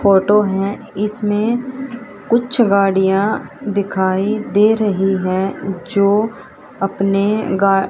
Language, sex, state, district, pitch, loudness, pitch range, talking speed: Hindi, female, Haryana, Rohtak, 200 Hz, -16 LUFS, 195-220 Hz, 90 wpm